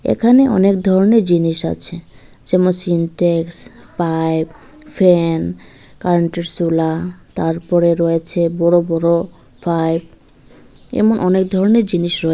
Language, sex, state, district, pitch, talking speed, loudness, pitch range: Bengali, female, Tripura, Dhalai, 170 Hz, 100 wpm, -16 LUFS, 165-185 Hz